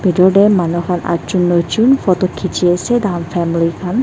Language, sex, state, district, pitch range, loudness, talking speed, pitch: Nagamese, female, Nagaland, Dimapur, 175-200 Hz, -14 LUFS, 195 wpm, 180 Hz